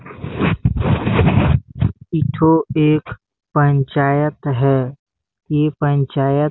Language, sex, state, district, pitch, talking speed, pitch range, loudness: Hindi, male, Chhattisgarh, Bastar, 145 Hz, 65 wpm, 135-150 Hz, -17 LUFS